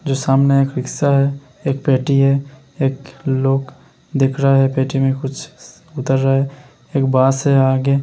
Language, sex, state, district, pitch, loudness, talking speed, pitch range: Hindi, male, Uttar Pradesh, Hamirpur, 135 Hz, -17 LUFS, 180 wpm, 135-140 Hz